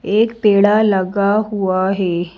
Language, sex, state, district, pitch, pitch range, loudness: Hindi, female, Madhya Pradesh, Bhopal, 200 Hz, 185-210 Hz, -15 LUFS